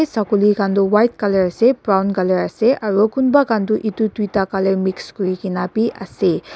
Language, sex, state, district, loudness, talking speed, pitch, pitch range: Nagamese, female, Nagaland, Dimapur, -17 LUFS, 175 wpm, 210 Hz, 195-225 Hz